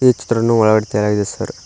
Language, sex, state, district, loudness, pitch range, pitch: Kannada, male, Karnataka, Koppal, -16 LUFS, 105-115 Hz, 110 Hz